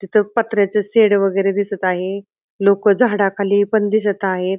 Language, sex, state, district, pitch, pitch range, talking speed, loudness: Marathi, female, Maharashtra, Pune, 200 Hz, 195-210 Hz, 145 wpm, -17 LUFS